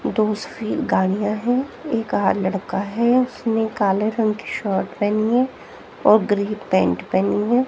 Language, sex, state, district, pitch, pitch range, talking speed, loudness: Hindi, female, Haryana, Jhajjar, 210 Hz, 200-230 Hz, 150 wpm, -20 LUFS